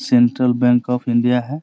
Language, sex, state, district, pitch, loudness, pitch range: Hindi, male, Bihar, Sitamarhi, 125 Hz, -17 LUFS, 120-125 Hz